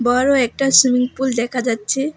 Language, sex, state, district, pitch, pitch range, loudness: Bengali, female, West Bengal, Alipurduar, 255 Hz, 245-270 Hz, -16 LUFS